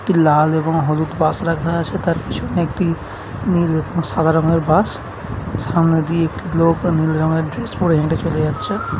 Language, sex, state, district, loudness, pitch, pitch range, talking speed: Bengali, male, West Bengal, Jhargram, -18 LUFS, 160 Hz, 155-165 Hz, 165 wpm